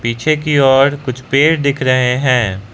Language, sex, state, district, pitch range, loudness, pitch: Hindi, male, Arunachal Pradesh, Lower Dibang Valley, 125-140 Hz, -13 LUFS, 130 Hz